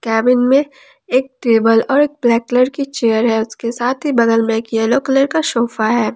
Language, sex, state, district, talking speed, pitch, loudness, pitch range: Hindi, female, Jharkhand, Palamu, 205 wpm, 245 Hz, -15 LUFS, 225-270 Hz